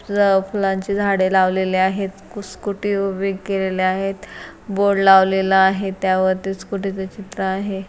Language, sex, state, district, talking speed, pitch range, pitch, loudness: Marathi, female, Maharashtra, Solapur, 135 wpm, 190-200 Hz, 195 Hz, -19 LUFS